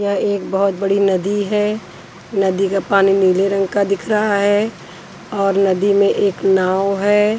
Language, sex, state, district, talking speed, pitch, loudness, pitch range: Hindi, female, Punjab, Pathankot, 160 wpm, 195 Hz, -16 LUFS, 190-205 Hz